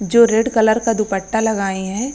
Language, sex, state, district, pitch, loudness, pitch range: Hindi, female, Bihar, Lakhisarai, 220 Hz, -17 LUFS, 200-230 Hz